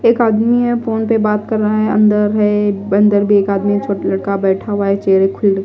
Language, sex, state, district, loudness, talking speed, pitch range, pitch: Hindi, female, Delhi, New Delhi, -14 LUFS, 235 wpm, 200-215 Hz, 210 Hz